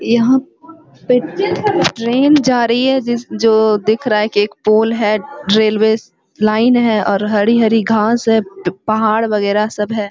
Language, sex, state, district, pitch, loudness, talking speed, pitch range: Hindi, female, Bihar, Jamui, 220 Hz, -14 LUFS, 155 wpm, 210-240 Hz